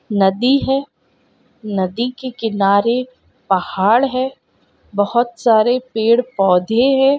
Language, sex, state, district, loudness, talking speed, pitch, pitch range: Hindi, female, Chhattisgarh, Bilaspur, -16 LUFS, 90 wpm, 235 Hz, 205-255 Hz